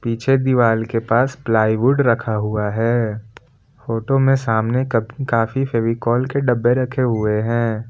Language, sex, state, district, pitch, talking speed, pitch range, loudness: Hindi, male, Jharkhand, Palamu, 115 Hz, 145 wpm, 115-130 Hz, -18 LUFS